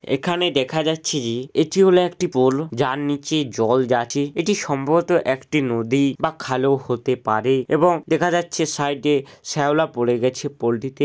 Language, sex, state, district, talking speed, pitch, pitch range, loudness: Bengali, male, West Bengal, Jhargram, 155 wpm, 145 Hz, 130-160 Hz, -20 LUFS